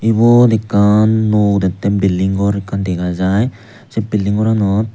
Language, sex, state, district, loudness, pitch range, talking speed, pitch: Chakma, male, Tripura, Unakoti, -14 LUFS, 100-110 Hz, 145 wpm, 105 Hz